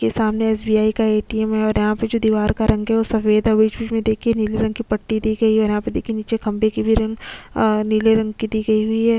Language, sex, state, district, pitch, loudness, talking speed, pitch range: Hindi, female, Chhattisgarh, Sukma, 220 Hz, -19 LUFS, 280 wpm, 215-225 Hz